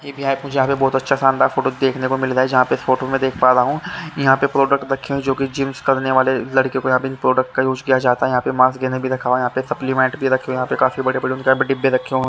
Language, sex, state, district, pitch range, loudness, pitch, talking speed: Hindi, male, Haryana, Charkhi Dadri, 130-135 Hz, -18 LUFS, 130 Hz, 320 wpm